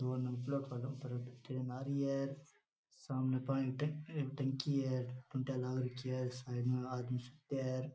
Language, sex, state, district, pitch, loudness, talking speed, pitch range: Rajasthani, male, Rajasthan, Nagaur, 130 Hz, -40 LUFS, 105 wpm, 125-135 Hz